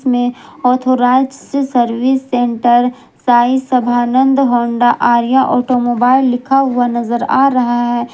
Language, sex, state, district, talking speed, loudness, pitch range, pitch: Hindi, female, Jharkhand, Garhwa, 110 wpm, -13 LUFS, 240-260 Hz, 245 Hz